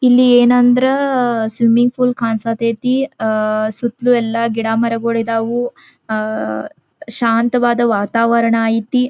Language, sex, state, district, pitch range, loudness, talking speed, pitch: Kannada, female, Karnataka, Belgaum, 225-245 Hz, -15 LUFS, 110 wpm, 230 Hz